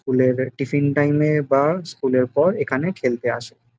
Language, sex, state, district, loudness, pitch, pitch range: Bengali, male, West Bengal, Jhargram, -20 LUFS, 135 Hz, 125-145 Hz